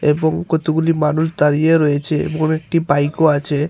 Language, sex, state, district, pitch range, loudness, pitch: Bengali, male, Tripura, Unakoti, 150-160 Hz, -16 LUFS, 155 Hz